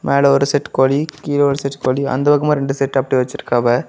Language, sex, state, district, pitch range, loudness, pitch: Tamil, male, Tamil Nadu, Kanyakumari, 135-145 Hz, -16 LUFS, 140 Hz